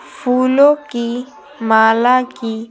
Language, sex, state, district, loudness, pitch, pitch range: Hindi, female, Bihar, Patna, -14 LUFS, 250 Hz, 230-275 Hz